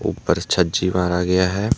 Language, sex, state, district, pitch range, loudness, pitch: Hindi, male, Jharkhand, Deoghar, 90-95 Hz, -19 LUFS, 90 Hz